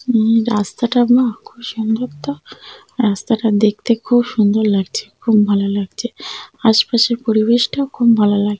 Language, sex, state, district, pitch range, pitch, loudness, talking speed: Bengali, female, West Bengal, North 24 Parganas, 210-240 Hz, 225 Hz, -16 LUFS, 135 wpm